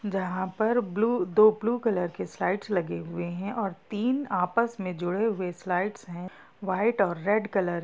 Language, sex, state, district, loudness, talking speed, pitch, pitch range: Hindi, female, Bihar, East Champaran, -27 LUFS, 185 wpm, 195 Hz, 180-215 Hz